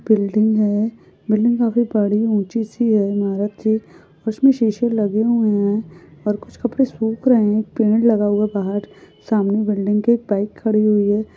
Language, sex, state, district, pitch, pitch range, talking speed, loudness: Hindi, female, Goa, North and South Goa, 215 Hz, 205-225 Hz, 175 wpm, -18 LUFS